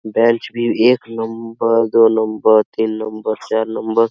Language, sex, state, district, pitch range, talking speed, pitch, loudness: Hindi, male, Bihar, Araria, 110-115 Hz, 160 wpm, 115 Hz, -16 LUFS